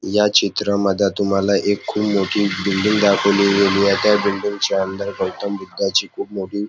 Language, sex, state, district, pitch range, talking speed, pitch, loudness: Marathi, male, Maharashtra, Nagpur, 100-105 Hz, 160 wpm, 100 Hz, -18 LUFS